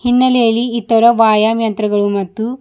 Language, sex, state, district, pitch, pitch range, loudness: Kannada, female, Karnataka, Bidar, 225 Hz, 215-235 Hz, -13 LUFS